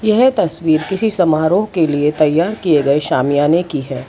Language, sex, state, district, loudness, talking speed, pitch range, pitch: Hindi, female, Gujarat, Valsad, -15 LUFS, 175 wpm, 145-185 Hz, 160 Hz